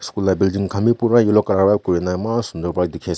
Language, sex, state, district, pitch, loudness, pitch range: Nagamese, male, Nagaland, Kohima, 95 Hz, -18 LUFS, 90-105 Hz